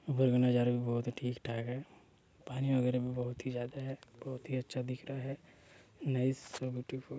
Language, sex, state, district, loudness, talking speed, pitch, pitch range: Hindi, male, Chhattisgarh, Sarguja, -36 LUFS, 185 wpm, 125 Hz, 125-130 Hz